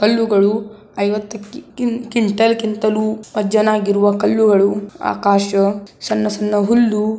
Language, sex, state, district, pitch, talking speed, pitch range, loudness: Kannada, female, Karnataka, Belgaum, 215 Hz, 85 wpm, 205-220 Hz, -16 LUFS